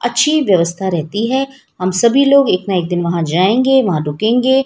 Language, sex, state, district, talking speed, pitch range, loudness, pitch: Hindi, female, Bihar, Patna, 155 wpm, 180-265 Hz, -14 LUFS, 210 Hz